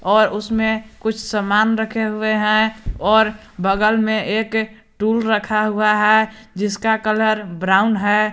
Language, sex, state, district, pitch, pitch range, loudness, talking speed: Hindi, male, Jharkhand, Garhwa, 215 Hz, 210-220 Hz, -18 LUFS, 135 wpm